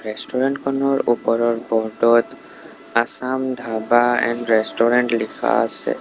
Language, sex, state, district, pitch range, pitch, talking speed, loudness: Assamese, male, Assam, Sonitpur, 115-125 Hz, 115 Hz, 110 wpm, -19 LUFS